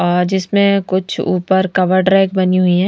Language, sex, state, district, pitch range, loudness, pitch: Hindi, female, Punjab, Fazilka, 185-195 Hz, -14 LUFS, 185 Hz